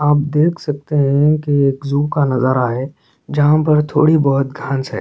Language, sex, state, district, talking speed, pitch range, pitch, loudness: Hindi, male, Chhattisgarh, Sarguja, 180 wpm, 135-150 Hz, 145 Hz, -15 LUFS